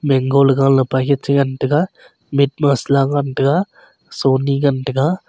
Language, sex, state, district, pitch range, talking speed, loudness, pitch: Wancho, male, Arunachal Pradesh, Longding, 135-145 Hz, 145 wpm, -16 LUFS, 140 Hz